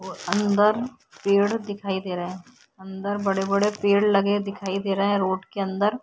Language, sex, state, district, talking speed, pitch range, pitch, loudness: Hindi, female, Bihar, Vaishali, 180 wpm, 190-205 Hz, 200 Hz, -24 LUFS